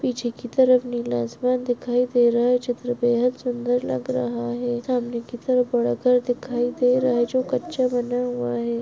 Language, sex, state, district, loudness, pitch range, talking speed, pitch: Hindi, female, Chhattisgarh, Balrampur, -23 LUFS, 240-250 Hz, 195 wpm, 245 Hz